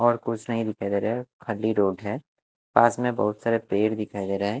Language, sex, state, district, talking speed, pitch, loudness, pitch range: Hindi, male, Bihar, West Champaran, 250 wpm, 110 Hz, -25 LUFS, 105-120 Hz